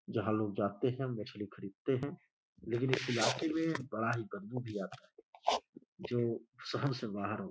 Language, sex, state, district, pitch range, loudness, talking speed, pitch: Hindi, male, Uttar Pradesh, Gorakhpur, 105-130 Hz, -37 LUFS, 185 wpm, 120 Hz